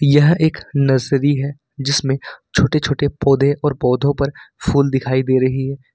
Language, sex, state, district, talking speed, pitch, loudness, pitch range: Hindi, male, Jharkhand, Ranchi, 150 wpm, 140 Hz, -17 LUFS, 135-145 Hz